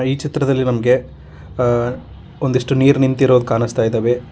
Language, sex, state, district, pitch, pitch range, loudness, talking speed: Kannada, male, Karnataka, Koppal, 125 Hz, 120-135 Hz, -16 LUFS, 125 wpm